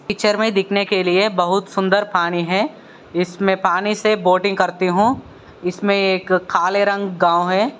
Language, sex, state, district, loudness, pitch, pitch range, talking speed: Hindi, male, Maharashtra, Sindhudurg, -18 LUFS, 195 Hz, 185-205 Hz, 155 wpm